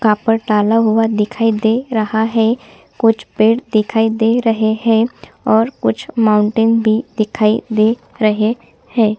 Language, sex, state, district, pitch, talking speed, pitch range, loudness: Hindi, female, Chhattisgarh, Sukma, 225 Hz, 135 wpm, 215-230 Hz, -15 LUFS